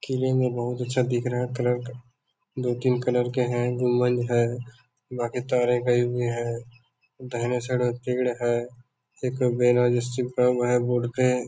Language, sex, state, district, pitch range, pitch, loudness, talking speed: Hindi, male, Bihar, Darbhanga, 120-125 Hz, 125 Hz, -25 LUFS, 170 wpm